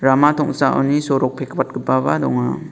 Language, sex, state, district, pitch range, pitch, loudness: Garo, male, Meghalaya, West Garo Hills, 130-145 Hz, 135 Hz, -18 LUFS